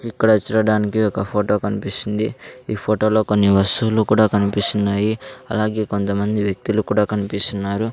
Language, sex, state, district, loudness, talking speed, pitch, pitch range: Telugu, male, Andhra Pradesh, Sri Satya Sai, -18 LUFS, 120 wpm, 105 Hz, 100-110 Hz